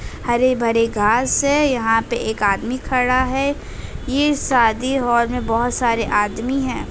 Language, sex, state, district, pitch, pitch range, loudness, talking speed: Hindi, female, Uttar Pradesh, Budaun, 245 Hz, 230-260 Hz, -18 LUFS, 145 wpm